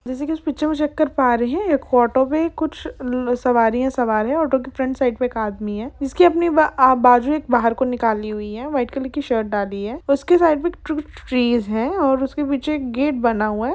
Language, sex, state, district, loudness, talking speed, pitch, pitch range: Hindi, female, Jharkhand, Sahebganj, -19 LUFS, 215 wpm, 260 Hz, 240-300 Hz